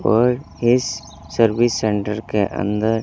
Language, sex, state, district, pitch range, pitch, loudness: Hindi, male, Chandigarh, Chandigarh, 105-120 Hz, 110 Hz, -19 LUFS